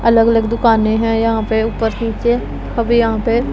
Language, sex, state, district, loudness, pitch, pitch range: Hindi, female, Punjab, Pathankot, -15 LUFS, 230 Hz, 225-235 Hz